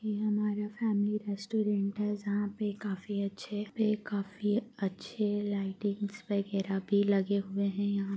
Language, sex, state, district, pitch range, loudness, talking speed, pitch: Hindi, female, Bihar, Gaya, 200-210 Hz, -33 LUFS, 145 wpm, 205 Hz